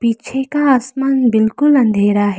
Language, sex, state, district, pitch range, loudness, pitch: Hindi, female, Arunachal Pradesh, Lower Dibang Valley, 220-270 Hz, -14 LUFS, 250 Hz